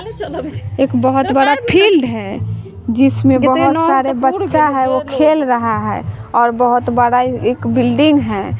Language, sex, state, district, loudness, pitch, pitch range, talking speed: Hindi, female, Bihar, West Champaran, -14 LUFS, 260 Hz, 240-275 Hz, 140 wpm